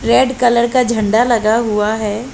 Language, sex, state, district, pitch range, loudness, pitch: Hindi, female, Chhattisgarh, Balrampur, 215-245 Hz, -14 LUFS, 235 Hz